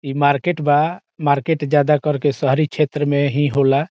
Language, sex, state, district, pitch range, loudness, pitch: Bhojpuri, male, Bihar, Saran, 140-150 Hz, -18 LUFS, 145 Hz